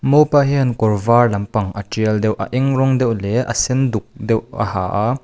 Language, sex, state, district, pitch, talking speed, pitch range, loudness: Mizo, male, Mizoram, Aizawl, 115 Hz, 230 wpm, 105-130 Hz, -17 LUFS